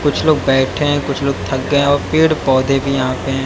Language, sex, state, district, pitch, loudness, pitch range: Hindi, male, Haryana, Jhajjar, 140 Hz, -15 LUFS, 135-145 Hz